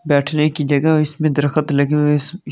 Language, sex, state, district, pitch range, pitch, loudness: Hindi, male, Delhi, New Delhi, 145-155 Hz, 150 Hz, -17 LUFS